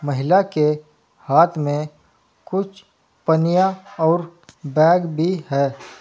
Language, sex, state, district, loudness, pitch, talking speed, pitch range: Hindi, male, Uttar Pradesh, Saharanpur, -19 LUFS, 160 Hz, 100 wpm, 150-180 Hz